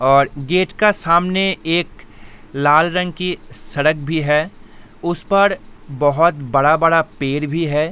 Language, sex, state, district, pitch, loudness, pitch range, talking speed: Hindi, male, Bihar, East Champaran, 155 Hz, -17 LUFS, 140-175 Hz, 135 wpm